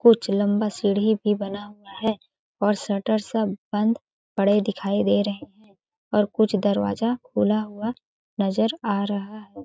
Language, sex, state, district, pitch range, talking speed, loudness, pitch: Hindi, female, Chhattisgarh, Balrampur, 200-215 Hz, 155 wpm, -24 LUFS, 210 Hz